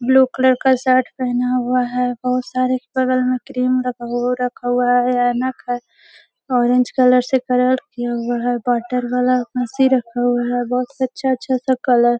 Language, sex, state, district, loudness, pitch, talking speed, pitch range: Hindi, female, Bihar, Gaya, -18 LUFS, 250 Hz, 175 wpm, 245-255 Hz